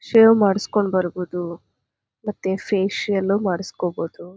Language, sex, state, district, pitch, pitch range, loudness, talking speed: Kannada, female, Karnataka, Chamarajanagar, 190 Hz, 175-205 Hz, -21 LUFS, 80 wpm